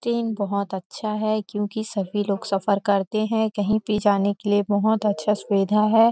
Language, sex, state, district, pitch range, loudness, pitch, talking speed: Hindi, female, Chhattisgarh, Rajnandgaon, 200-215 Hz, -23 LUFS, 210 Hz, 185 wpm